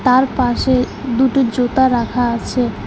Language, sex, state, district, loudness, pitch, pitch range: Bengali, female, West Bengal, Alipurduar, -16 LUFS, 250 Hz, 245-260 Hz